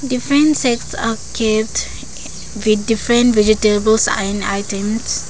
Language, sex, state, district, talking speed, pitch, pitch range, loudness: English, female, Arunachal Pradesh, Lower Dibang Valley, 100 wpm, 220 Hz, 210-245 Hz, -16 LUFS